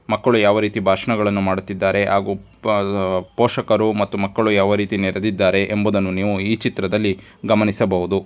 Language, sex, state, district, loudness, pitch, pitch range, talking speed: Kannada, male, Karnataka, Dharwad, -19 LUFS, 100 Hz, 95-105 Hz, 125 wpm